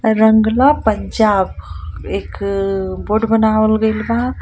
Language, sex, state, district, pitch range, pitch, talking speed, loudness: Bhojpuri, female, Jharkhand, Palamu, 195-220 Hz, 215 Hz, 95 wpm, -15 LUFS